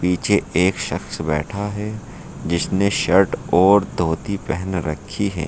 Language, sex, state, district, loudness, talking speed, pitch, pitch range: Hindi, male, Uttar Pradesh, Saharanpur, -20 LUFS, 130 wpm, 95 Hz, 85-100 Hz